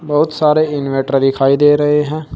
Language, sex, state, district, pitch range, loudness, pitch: Hindi, male, Uttar Pradesh, Saharanpur, 135-150 Hz, -13 LUFS, 145 Hz